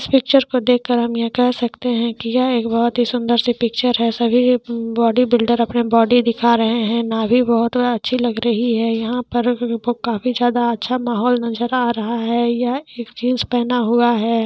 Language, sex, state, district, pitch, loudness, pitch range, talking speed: Hindi, female, Jharkhand, Sahebganj, 240 Hz, -17 LUFS, 230-245 Hz, 195 wpm